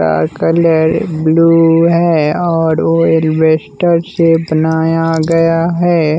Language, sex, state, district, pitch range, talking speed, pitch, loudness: Hindi, male, Bihar, West Champaran, 160-165 Hz, 105 wpm, 165 Hz, -11 LUFS